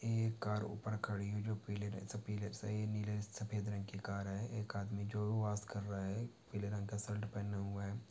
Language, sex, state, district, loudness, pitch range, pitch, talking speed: Hindi, male, Maharashtra, Dhule, -42 LUFS, 100-105 Hz, 105 Hz, 200 wpm